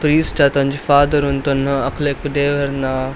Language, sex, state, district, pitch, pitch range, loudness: Tulu, male, Karnataka, Dakshina Kannada, 140 Hz, 140-145 Hz, -17 LUFS